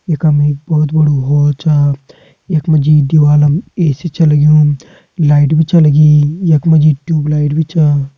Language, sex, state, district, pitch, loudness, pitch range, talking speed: Hindi, male, Uttarakhand, Uttarkashi, 150 Hz, -11 LUFS, 145-160 Hz, 140 wpm